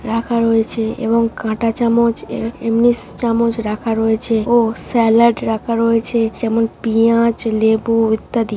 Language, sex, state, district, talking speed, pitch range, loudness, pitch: Bengali, female, West Bengal, Jhargram, 120 wpm, 225-230 Hz, -16 LUFS, 230 Hz